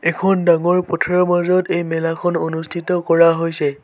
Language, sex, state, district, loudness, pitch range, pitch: Assamese, male, Assam, Sonitpur, -17 LUFS, 165-180 Hz, 170 Hz